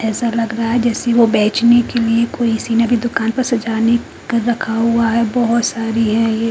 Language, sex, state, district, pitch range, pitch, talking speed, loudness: Hindi, female, Haryana, Charkhi Dadri, 225-235 Hz, 230 Hz, 205 wpm, -15 LUFS